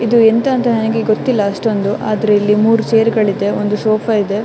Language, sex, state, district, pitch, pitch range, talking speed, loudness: Kannada, female, Karnataka, Dakshina Kannada, 220 Hz, 210-225 Hz, 190 wpm, -14 LUFS